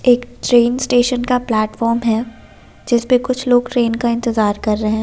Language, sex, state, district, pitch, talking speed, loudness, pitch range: Hindi, female, Delhi, New Delhi, 240 Hz, 180 wpm, -16 LUFS, 225-245 Hz